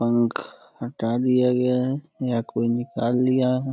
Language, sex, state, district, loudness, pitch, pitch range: Hindi, male, Uttar Pradesh, Deoria, -23 LUFS, 125 Hz, 120-130 Hz